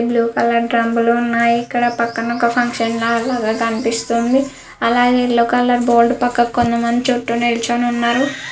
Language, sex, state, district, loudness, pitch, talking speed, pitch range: Telugu, female, Andhra Pradesh, Guntur, -16 LUFS, 235 Hz, 135 wpm, 235-245 Hz